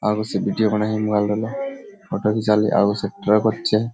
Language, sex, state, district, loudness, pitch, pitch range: Hindi, male, Bihar, Kishanganj, -20 LUFS, 105 Hz, 105-110 Hz